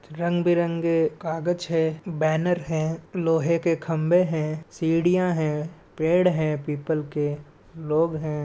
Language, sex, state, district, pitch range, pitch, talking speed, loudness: Chhattisgarhi, male, Chhattisgarh, Balrampur, 155-170 Hz, 160 Hz, 120 wpm, -24 LUFS